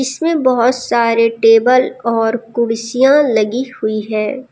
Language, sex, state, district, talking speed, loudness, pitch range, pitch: Hindi, female, Jharkhand, Deoghar, 120 wpm, -14 LUFS, 225-260 Hz, 235 Hz